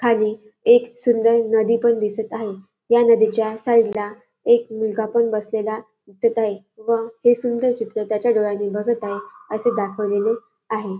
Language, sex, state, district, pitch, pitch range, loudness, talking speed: Marathi, female, Maharashtra, Dhule, 220 Hz, 215-235 Hz, -20 LUFS, 145 wpm